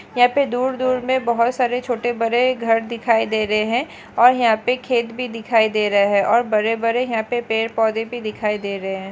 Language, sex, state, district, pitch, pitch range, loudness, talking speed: Hindi, female, Bihar, Jamui, 230 Hz, 220-245 Hz, -19 LUFS, 205 wpm